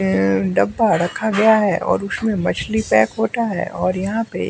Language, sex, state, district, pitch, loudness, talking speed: Hindi, male, Bihar, West Champaran, 195 Hz, -18 LUFS, 185 wpm